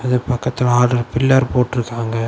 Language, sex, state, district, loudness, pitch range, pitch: Tamil, male, Tamil Nadu, Kanyakumari, -17 LUFS, 120-125 Hz, 125 Hz